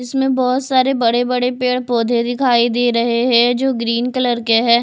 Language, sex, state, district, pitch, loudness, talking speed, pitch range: Hindi, female, Odisha, Khordha, 245 Hz, -16 LUFS, 200 wpm, 235-255 Hz